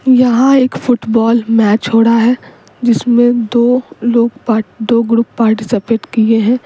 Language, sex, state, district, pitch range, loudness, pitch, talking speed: Hindi, female, Bihar, Patna, 225-245 Hz, -12 LUFS, 235 Hz, 145 wpm